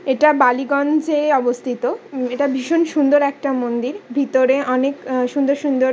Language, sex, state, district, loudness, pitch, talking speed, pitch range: Bengali, female, West Bengal, Kolkata, -18 LUFS, 275 Hz, 140 wpm, 255-290 Hz